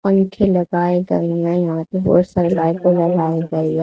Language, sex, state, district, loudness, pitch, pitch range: Hindi, female, Haryana, Charkhi Dadri, -17 LUFS, 175 Hz, 165-180 Hz